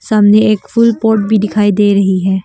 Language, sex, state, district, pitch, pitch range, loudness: Hindi, female, Arunachal Pradesh, Longding, 210 Hz, 200-220 Hz, -11 LUFS